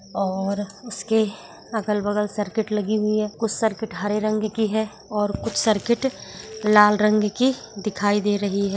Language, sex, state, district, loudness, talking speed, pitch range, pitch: Hindi, female, Bihar, Muzaffarpur, -22 LUFS, 160 wpm, 205-220 Hz, 210 Hz